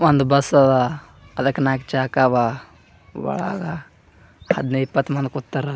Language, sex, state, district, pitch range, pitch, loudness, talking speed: Kannada, male, Karnataka, Gulbarga, 130-140 Hz, 135 Hz, -20 LUFS, 115 wpm